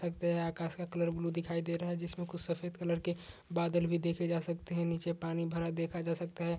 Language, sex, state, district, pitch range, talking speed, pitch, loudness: Hindi, male, Uttar Pradesh, Etah, 170-175 Hz, 235 wpm, 170 Hz, -36 LUFS